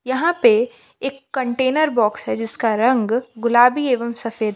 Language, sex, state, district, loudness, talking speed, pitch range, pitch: Hindi, female, Jharkhand, Palamu, -18 LUFS, 160 wpm, 230-275 Hz, 250 Hz